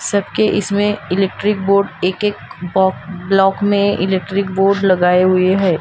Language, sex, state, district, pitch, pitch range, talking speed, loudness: Hindi, female, Maharashtra, Gondia, 195 Hz, 185-200 Hz, 145 wpm, -15 LUFS